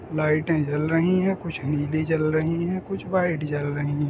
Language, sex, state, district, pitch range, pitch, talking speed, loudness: Hindi, female, Bihar, Sitamarhi, 150-170 Hz, 155 Hz, 205 wpm, -24 LUFS